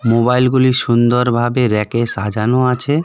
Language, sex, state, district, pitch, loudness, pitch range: Bengali, male, West Bengal, Darjeeling, 120 Hz, -14 LUFS, 115-130 Hz